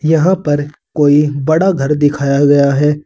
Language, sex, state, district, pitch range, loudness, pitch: Hindi, male, Uttar Pradesh, Saharanpur, 145-155 Hz, -12 LUFS, 145 Hz